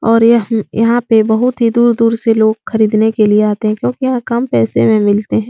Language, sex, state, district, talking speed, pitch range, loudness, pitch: Hindi, female, Uttar Pradesh, Etah, 220 wpm, 215-235 Hz, -12 LUFS, 225 Hz